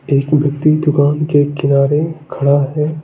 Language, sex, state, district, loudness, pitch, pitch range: Hindi, male, Arunachal Pradesh, Lower Dibang Valley, -14 LUFS, 145 Hz, 140-150 Hz